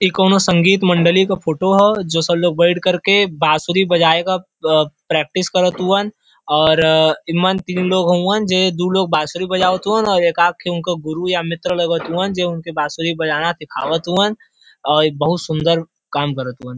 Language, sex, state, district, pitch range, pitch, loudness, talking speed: Bhojpuri, male, Uttar Pradesh, Varanasi, 160-185 Hz, 175 Hz, -16 LUFS, 195 wpm